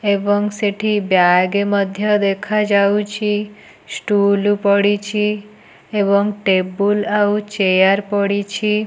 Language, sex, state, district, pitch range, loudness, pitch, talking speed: Odia, female, Odisha, Nuapada, 200-210 Hz, -16 LUFS, 205 Hz, 80 wpm